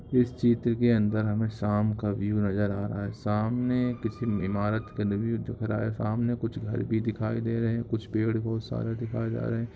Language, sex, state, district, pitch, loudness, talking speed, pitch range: Hindi, male, Bihar, Samastipur, 110 Hz, -29 LUFS, 230 wpm, 105-115 Hz